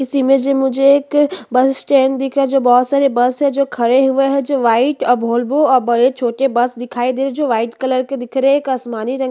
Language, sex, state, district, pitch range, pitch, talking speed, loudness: Hindi, female, Chhattisgarh, Bastar, 245-275 Hz, 265 Hz, 260 wpm, -15 LUFS